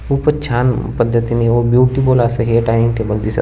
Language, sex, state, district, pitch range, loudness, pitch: Marathi, male, Maharashtra, Sindhudurg, 115-125 Hz, -15 LUFS, 120 Hz